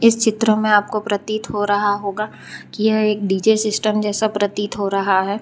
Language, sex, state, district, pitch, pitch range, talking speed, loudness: Hindi, female, Gujarat, Valsad, 210 Hz, 205-215 Hz, 190 wpm, -18 LUFS